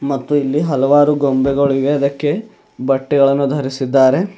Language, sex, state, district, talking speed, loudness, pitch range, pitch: Kannada, male, Karnataka, Bidar, 95 wpm, -15 LUFS, 135-145 Hz, 140 Hz